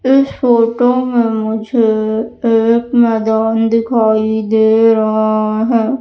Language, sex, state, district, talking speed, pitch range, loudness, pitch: Hindi, female, Madhya Pradesh, Umaria, 100 wpm, 220-235 Hz, -13 LUFS, 225 Hz